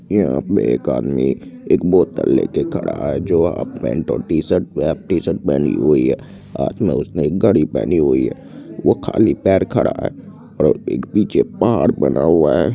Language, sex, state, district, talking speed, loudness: Hindi, male, Bihar, Purnia, 180 wpm, -17 LUFS